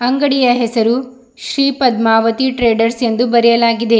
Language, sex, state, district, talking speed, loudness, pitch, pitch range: Kannada, female, Karnataka, Bidar, 90 wpm, -13 LUFS, 235 Hz, 230-250 Hz